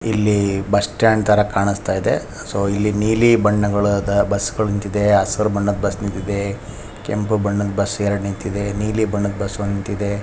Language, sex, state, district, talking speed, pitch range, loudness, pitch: Kannada, male, Karnataka, Raichur, 150 wpm, 100-105 Hz, -19 LUFS, 100 Hz